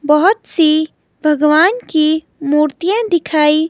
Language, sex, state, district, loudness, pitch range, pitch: Hindi, female, Himachal Pradesh, Shimla, -14 LUFS, 300-345 Hz, 310 Hz